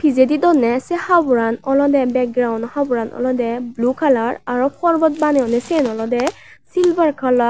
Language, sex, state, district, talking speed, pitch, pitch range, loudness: Chakma, female, Tripura, West Tripura, 135 wpm, 260 Hz, 240-300 Hz, -17 LUFS